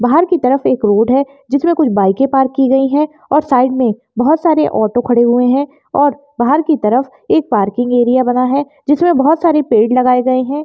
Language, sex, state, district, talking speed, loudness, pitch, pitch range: Hindi, female, Maharashtra, Solapur, 215 wpm, -13 LUFS, 265 Hz, 245-295 Hz